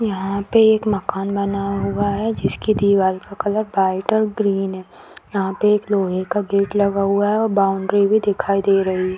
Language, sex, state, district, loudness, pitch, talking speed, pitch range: Hindi, female, Uttar Pradesh, Deoria, -19 LUFS, 200 Hz, 205 wpm, 195-210 Hz